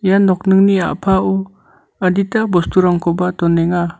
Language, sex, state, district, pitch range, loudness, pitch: Garo, male, Meghalaya, North Garo Hills, 175-195 Hz, -15 LUFS, 190 Hz